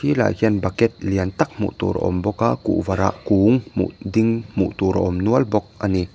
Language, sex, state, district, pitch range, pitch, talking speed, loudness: Mizo, male, Mizoram, Aizawl, 95-115 Hz, 105 Hz, 225 wpm, -20 LUFS